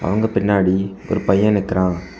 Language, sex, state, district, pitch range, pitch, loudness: Tamil, male, Tamil Nadu, Kanyakumari, 95-105 Hz, 95 Hz, -18 LUFS